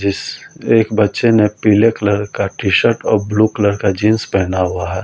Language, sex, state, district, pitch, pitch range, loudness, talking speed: Hindi, male, Delhi, New Delhi, 105 Hz, 100-110 Hz, -15 LUFS, 190 wpm